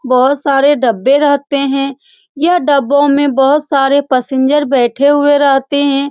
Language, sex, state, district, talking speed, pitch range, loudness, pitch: Hindi, female, Bihar, Saran, 145 wpm, 270-290 Hz, -11 LUFS, 280 Hz